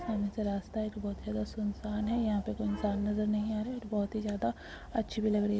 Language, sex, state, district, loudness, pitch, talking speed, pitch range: Hindi, female, Uttar Pradesh, Ghazipur, -34 LUFS, 210 Hz, 280 wpm, 205-215 Hz